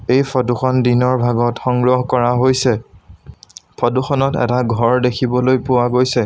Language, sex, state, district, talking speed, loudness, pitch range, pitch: Assamese, male, Assam, Sonitpur, 145 wpm, -16 LUFS, 120-130 Hz, 125 Hz